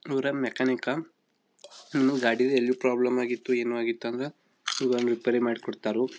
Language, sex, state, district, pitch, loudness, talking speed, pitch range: Kannada, male, Karnataka, Belgaum, 125 Hz, -27 LUFS, 115 wpm, 120-130 Hz